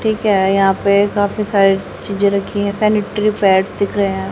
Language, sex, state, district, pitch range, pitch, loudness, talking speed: Hindi, female, Haryana, Charkhi Dadri, 195-205 Hz, 200 Hz, -15 LUFS, 195 wpm